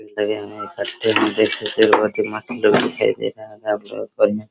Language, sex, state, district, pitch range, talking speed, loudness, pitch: Hindi, male, Bihar, Araria, 105-110 Hz, 160 wpm, -19 LUFS, 105 Hz